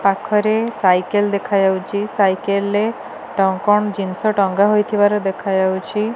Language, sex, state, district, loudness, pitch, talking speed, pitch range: Odia, female, Odisha, Nuapada, -17 LUFS, 200 Hz, 95 wpm, 195-210 Hz